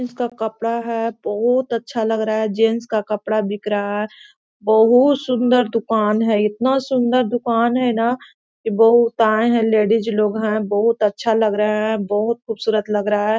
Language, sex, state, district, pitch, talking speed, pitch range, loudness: Hindi, female, Chhattisgarh, Korba, 225 Hz, 175 wpm, 215-235 Hz, -18 LUFS